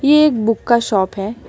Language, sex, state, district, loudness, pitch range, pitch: Hindi, female, West Bengal, Alipurduar, -16 LUFS, 210-275 Hz, 230 Hz